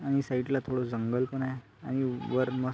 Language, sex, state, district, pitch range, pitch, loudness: Marathi, male, Maharashtra, Sindhudurg, 125-135 Hz, 130 Hz, -31 LUFS